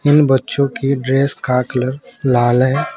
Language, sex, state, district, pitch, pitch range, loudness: Hindi, male, Uttar Pradesh, Saharanpur, 135 Hz, 125-140 Hz, -16 LUFS